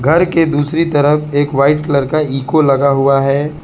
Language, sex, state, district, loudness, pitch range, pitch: Hindi, male, Gujarat, Valsad, -13 LUFS, 140-155 Hz, 145 Hz